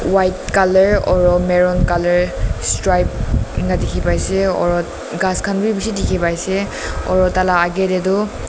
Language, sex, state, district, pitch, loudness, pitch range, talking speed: Nagamese, female, Nagaland, Dimapur, 185 Hz, -16 LUFS, 180-195 Hz, 160 wpm